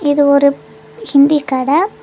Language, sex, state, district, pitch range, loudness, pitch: Tamil, female, Tamil Nadu, Kanyakumari, 280-305 Hz, -13 LUFS, 285 Hz